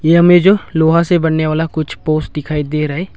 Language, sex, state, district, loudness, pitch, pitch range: Hindi, male, Arunachal Pradesh, Longding, -14 LUFS, 160 Hz, 155-170 Hz